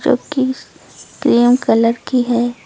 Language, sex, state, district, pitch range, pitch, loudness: Hindi, female, Uttar Pradesh, Lucknow, 240-260 Hz, 245 Hz, -15 LUFS